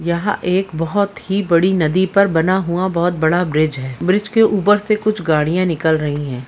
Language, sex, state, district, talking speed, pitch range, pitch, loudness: Hindi, male, Jharkhand, Jamtara, 205 wpm, 160-200 Hz, 180 Hz, -16 LUFS